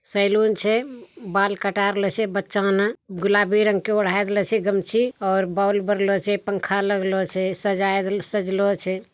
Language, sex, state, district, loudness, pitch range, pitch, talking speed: Angika, male, Bihar, Bhagalpur, -22 LUFS, 195-205 Hz, 200 Hz, 175 wpm